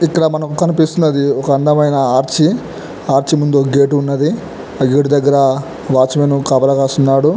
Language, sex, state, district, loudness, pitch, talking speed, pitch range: Telugu, male, Telangana, Nalgonda, -13 LUFS, 140 Hz, 65 wpm, 135-155 Hz